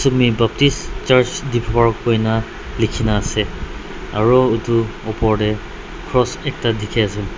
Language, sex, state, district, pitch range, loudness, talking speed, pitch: Nagamese, male, Nagaland, Dimapur, 110-125 Hz, -18 LUFS, 120 wpm, 115 Hz